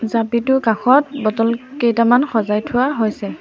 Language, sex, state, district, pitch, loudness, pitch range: Assamese, female, Assam, Sonitpur, 235 Hz, -17 LUFS, 225-255 Hz